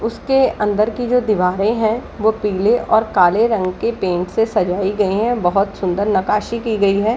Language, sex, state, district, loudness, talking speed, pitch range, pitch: Hindi, female, Bihar, Gaya, -17 LUFS, 190 wpm, 195-225 Hz, 210 Hz